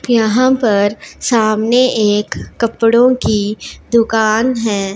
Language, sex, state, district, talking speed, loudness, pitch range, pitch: Hindi, female, Punjab, Pathankot, 95 wpm, -14 LUFS, 215-240 Hz, 225 Hz